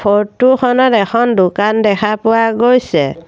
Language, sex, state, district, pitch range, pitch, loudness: Assamese, female, Assam, Sonitpur, 205-240 Hz, 225 Hz, -12 LUFS